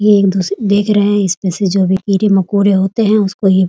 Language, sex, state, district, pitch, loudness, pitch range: Hindi, female, Bihar, Muzaffarpur, 200 Hz, -13 LUFS, 190-205 Hz